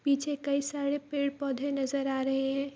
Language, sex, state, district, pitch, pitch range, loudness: Hindi, female, Bihar, Saharsa, 280 Hz, 270-285 Hz, -31 LUFS